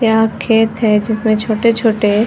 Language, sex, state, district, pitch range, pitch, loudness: Hindi, female, Chhattisgarh, Sarguja, 215-225 Hz, 220 Hz, -14 LUFS